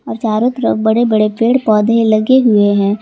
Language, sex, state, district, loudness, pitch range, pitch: Hindi, female, Jharkhand, Garhwa, -12 LUFS, 215-235 Hz, 220 Hz